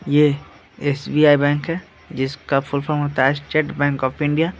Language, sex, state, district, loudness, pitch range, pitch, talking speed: Hindi, male, Bihar, Muzaffarpur, -20 LUFS, 140-150 Hz, 145 Hz, 180 wpm